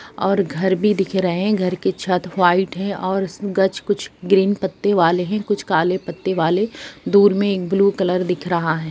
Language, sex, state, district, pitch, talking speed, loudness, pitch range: Hindi, female, Jharkhand, Sahebganj, 190 Hz, 200 wpm, -19 LUFS, 180-200 Hz